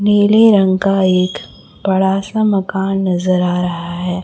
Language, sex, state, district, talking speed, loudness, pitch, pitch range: Hindi, female, Chhattisgarh, Raipur, 155 wpm, -14 LUFS, 190 Hz, 180-195 Hz